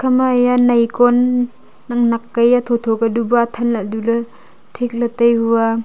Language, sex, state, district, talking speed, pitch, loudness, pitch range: Wancho, female, Arunachal Pradesh, Longding, 145 wpm, 235 Hz, -16 LUFS, 230-245 Hz